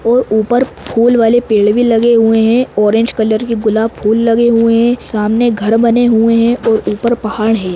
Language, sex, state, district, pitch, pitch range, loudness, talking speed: Hindi, female, Bihar, Purnia, 230 Hz, 220-235 Hz, -11 LUFS, 200 wpm